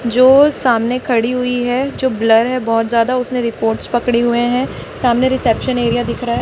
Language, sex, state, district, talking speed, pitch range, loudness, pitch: Hindi, female, Chhattisgarh, Raipur, 185 wpm, 235-255 Hz, -15 LUFS, 245 Hz